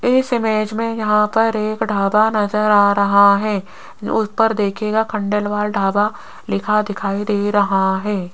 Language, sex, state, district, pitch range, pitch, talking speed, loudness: Hindi, female, Rajasthan, Jaipur, 200-215 Hz, 210 Hz, 150 wpm, -17 LUFS